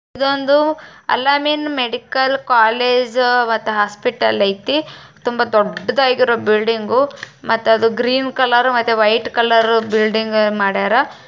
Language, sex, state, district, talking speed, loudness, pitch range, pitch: Kannada, female, Karnataka, Bijapur, 110 wpm, -16 LUFS, 220-260 Hz, 240 Hz